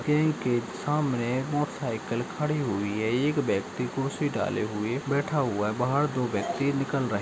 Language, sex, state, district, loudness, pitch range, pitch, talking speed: Hindi, male, Uttar Pradesh, Deoria, -28 LUFS, 120-145 Hz, 135 Hz, 185 wpm